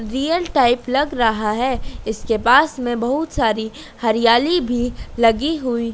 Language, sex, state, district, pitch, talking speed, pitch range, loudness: Hindi, female, Madhya Pradesh, Dhar, 245 Hz, 140 wpm, 230-275 Hz, -18 LUFS